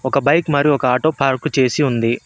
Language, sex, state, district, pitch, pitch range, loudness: Telugu, male, Telangana, Mahabubabad, 135 Hz, 125-145 Hz, -16 LUFS